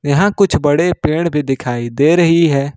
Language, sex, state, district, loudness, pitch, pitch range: Hindi, male, Jharkhand, Ranchi, -14 LUFS, 150 Hz, 140-170 Hz